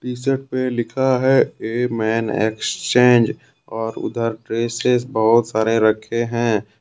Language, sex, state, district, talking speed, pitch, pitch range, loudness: Hindi, male, Jharkhand, Ranchi, 125 wpm, 115 Hz, 110-125 Hz, -19 LUFS